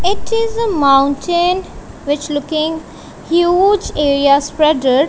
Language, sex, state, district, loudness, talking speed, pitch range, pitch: English, female, Punjab, Kapurthala, -14 LUFS, 105 wpm, 285-360 Hz, 315 Hz